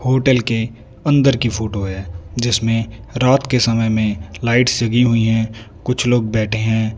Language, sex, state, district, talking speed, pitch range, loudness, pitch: Hindi, male, Punjab, Fazilka, 165 wpm, 110-125 Hz, -17 LUFS, 115 Hz